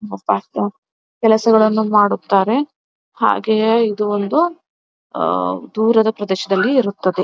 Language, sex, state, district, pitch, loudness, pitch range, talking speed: Kannada, female, Karnataka, Belgaum, 220 Hz, -17 LUFS, 200-225 Hz, 85 wpm